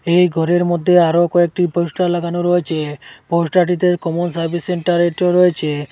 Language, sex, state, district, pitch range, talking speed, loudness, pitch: Bengali, male, Assam, Hailakandi, 170-180 Hz, 140 wpm, -16 LUFS, 175 Hz